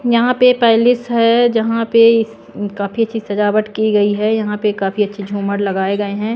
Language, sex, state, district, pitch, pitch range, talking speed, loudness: Hindi, female, Punjab, Pathankot, 215 Hz, 205-230 Hz, 190 wpm, -15 LUFS